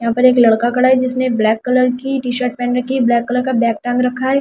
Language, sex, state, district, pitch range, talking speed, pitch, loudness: Hindi, female, Delhi, New Delhi, 240-255 Hz, 270 wpm, 250 Hz, -15 LUFS